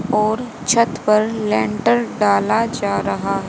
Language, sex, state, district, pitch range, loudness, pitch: Hindi, female, Haryana, Charkhi Dadri, 155-230 Hz, -18 LUFS, 215 Hz